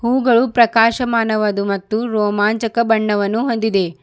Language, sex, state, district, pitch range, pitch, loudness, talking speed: Kannada, female, Karnataka, Bidar, 205-235 Hz, 225 Hz, -16 LUFS, 90 wpm